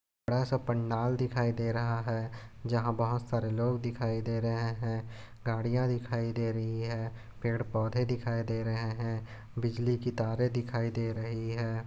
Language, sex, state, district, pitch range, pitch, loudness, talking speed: Hindi, male, Chhattisgarh, Bastar, 115-120 Hz, 115 Hz, -33 LUFS, 165 wpm